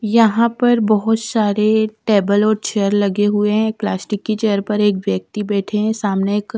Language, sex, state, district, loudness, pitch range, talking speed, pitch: Hindi, female, Punjab, Kapurthala, -17 LUFS, 205-220 Hz, 180 wpm, 210 Hz